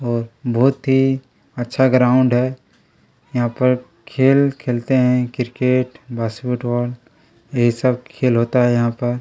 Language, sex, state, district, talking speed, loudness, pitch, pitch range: Hindi, male, Chhattisgarh, Kabirdham, 135 wpm, -18 LUFS, 125 Hz, 120-130 Hz